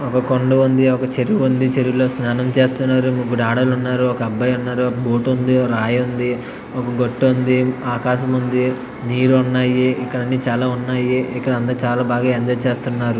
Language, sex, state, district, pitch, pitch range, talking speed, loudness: Telugu, male, Andhra Pradesh, Visakhapatnam, 125 Hz, 125-130 Hz, 165 wpm, -18 LUFS